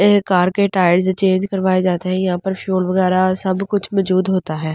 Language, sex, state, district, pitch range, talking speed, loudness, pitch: Hindi, female, Delhi, New Delhi, 185-190 Hz, 215 wpm, -17 LUFS, 185 Hz